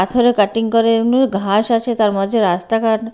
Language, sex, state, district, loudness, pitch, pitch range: Bengali, female, Bihar, Katihar, -15 LUFS, 225 Hz, 205-230 Hz